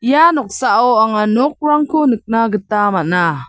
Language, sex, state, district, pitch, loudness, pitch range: Garo, female, Meghalaya, South Garo Hills, 230 Hz, -14 LUFS, 210-290 Hz